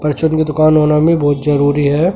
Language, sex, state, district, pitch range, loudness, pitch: Hindi, male, Delhi, New Delhi, 145-155 Hz, -13 LUFS, 150 Hz